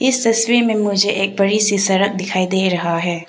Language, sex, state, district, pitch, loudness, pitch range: Hindi, female, Arunachal Pradesh, Papum Pare, 200 Hz, -16 LUFS, 185-215 Hz